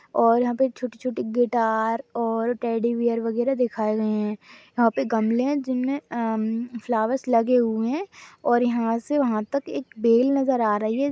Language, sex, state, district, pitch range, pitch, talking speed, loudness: Hindi, female, Chhattisgarh, Bastar, 225-255 Hz, 235 Hz, 185 wpm, -23 LUFS